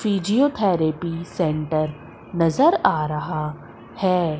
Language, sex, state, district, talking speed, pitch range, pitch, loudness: Hindi, female, Madhya Pradesh, Umaria, 80 wpm, 155-190 Hz, 165 Hz, -21 LUFS